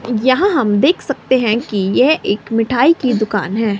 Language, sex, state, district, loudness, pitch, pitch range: Hindi, female, Himachal Pradesh, Shimla, -15 LUFS, 230 Hz, 210-260 Hz